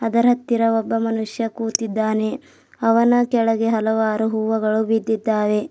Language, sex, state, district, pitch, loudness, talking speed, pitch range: Kannada, female, Karnataka, Bidar, 225 Hz, -20 LUFS, 105 wpm, 220-230 Hz